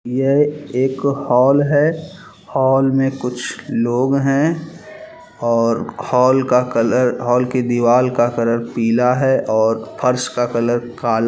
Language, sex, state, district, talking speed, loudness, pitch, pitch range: Hindi, male, Chhattisgarh, Bilaspur, 140 wpm, -17 LUFS, 125 Hz, 120-135 Hz